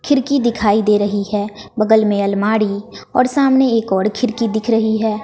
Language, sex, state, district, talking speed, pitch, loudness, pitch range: Hindi, female, Bihar, West Champaran, 185 wpm, 220 Hz, -16 LUFS, 205-235 Hz